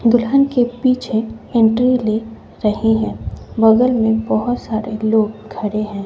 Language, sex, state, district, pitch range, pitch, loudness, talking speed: Hindi, female, Bihar, West Champaran, 220-245 Hz, 225 Hz, -17 LUFS, 140 wpm